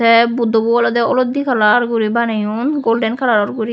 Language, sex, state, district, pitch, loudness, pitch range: Chakma, female, Tripura, West Tripura, 230 Hz, -15 LUFS, 225-245 Hz